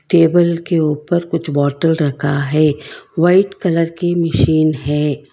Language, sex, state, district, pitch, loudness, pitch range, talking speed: Hindi, female, Karnataka, Bangalore, 160 Hz, -15 LUFS, 150-170 Hz, 135 wpm